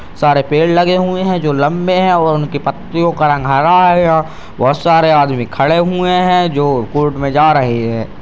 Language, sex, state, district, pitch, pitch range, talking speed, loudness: Hindi, male, Bihar, Purnia, 155 Hz, 140-175 Hz, 210 wpm, -12 LUFS